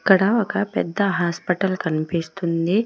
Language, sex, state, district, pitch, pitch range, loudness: Telugu, female, Telangana, Mahabubabad, 185 Hz, 170-200 Hz, -21 LUFS